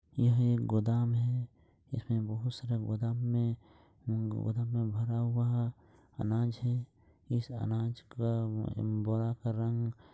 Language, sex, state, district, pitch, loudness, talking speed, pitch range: Hindi, male, Jharkhand, Sahebganj, 115 Hz, -33 LUFS, 130 wpm, 110-120 Hz